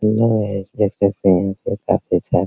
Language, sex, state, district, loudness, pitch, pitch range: Hindi, male, Bihar, Araria, -18 LUFS, 100 Hz, 95-105 Hz